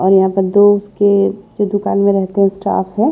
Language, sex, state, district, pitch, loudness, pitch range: Hindi, male, Maharashtra, Washim, 200 Hz, -14 LUFS, 195-205 Hz